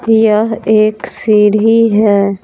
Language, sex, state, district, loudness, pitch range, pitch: Hindi, female, Bihar, Patna, -11 LUFS, 210-220 Hz, 215 Hz